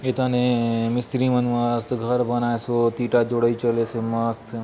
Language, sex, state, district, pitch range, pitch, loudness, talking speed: Chhattisgarhi, male, Chhattisgarh, Bastar, 115-125 Hz, 120 Hz, -22 LUFS, 140 wpm